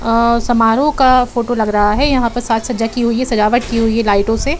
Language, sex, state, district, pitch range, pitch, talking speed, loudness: Hindi, female, Bihar, Saran, 225-245 Hz, 235 Hz, 260 wpm, -14 LUFS